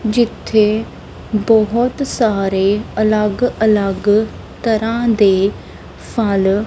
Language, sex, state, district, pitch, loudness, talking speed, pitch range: Punjabi, female, Punjab, Kapurthala, 215 Hz, -16 LUFS, 70 wpm, 205-225 Hz